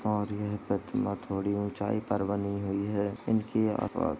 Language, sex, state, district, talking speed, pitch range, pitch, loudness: Hindi, male, Uttar Pradesh, Jalaun, 155 wpm, 100-105 Hz, 100 Hz, -31 LUFS